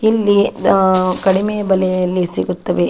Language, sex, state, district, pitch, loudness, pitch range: Kannada, female, Karnataka, Chamarajanagar, 190 Hz, -15 LUFS, 180-205 Hz